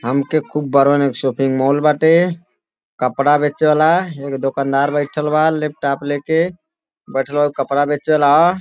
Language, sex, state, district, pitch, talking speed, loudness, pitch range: Bhojpuri, male, Uttar Pradesh, Deoria, 145 Hz, 145 wpm, -16 LUFS, 140-155 Hz